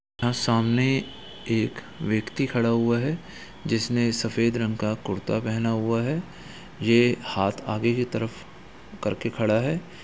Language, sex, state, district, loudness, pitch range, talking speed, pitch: Hindi, male, Bihar, Gaya, -25 LUFS, 110-130 Hz, 135 wpm, 115 Hz